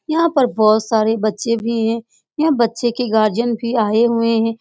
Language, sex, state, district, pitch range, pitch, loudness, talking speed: Hindi, female, Bihar, Saran, 220-240 Hz, 230 Hz, -17 LUFS, 195 wpm